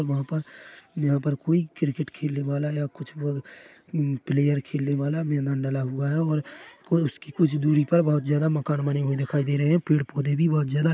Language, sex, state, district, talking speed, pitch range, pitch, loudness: Hindi, male, Chhattisgarh, Korba, 215 wpm, 140-155 Hz, 150 Hz, -25 LUFS